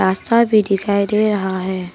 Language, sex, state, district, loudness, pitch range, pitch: Hindi, female, Arunachal Pradesh, Papum Pare, -16 LUFS, 190-215 Hz, 200 Hz